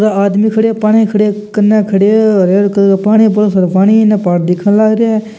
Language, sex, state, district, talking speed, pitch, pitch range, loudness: Hindi, male, Rajasthan, Churu, 265 wpm, 210 Hz, 200-215 Hz, -10 LUFS